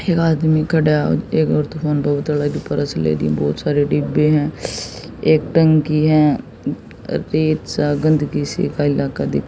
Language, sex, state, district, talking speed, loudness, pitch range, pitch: Hindi, female, Haryana, Jhajjar, 110 wpm, -18 LUFS, 145-155 Hz, 150 Hz